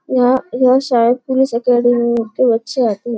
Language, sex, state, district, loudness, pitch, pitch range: Hindi, male, Maharashtra, Nagpur, -14 LUFS, 245 Hz, 235-255 Hz